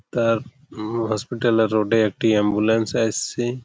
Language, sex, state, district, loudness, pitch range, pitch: Bengali, male, West Bengal, Malda, -21 LUFS, 110-115 Hz, 115 Hz